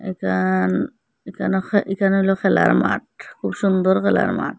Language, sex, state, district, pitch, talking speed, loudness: Bengali, female, Assam, Hailakandi, 190 Hz, 145 wpm, -19 LUFS